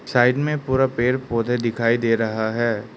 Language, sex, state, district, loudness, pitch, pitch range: Hindi, male, Arunachal Pradesh, Lower Dibang Valley, -21 LUFS, 120 Hz, 115-130 Hz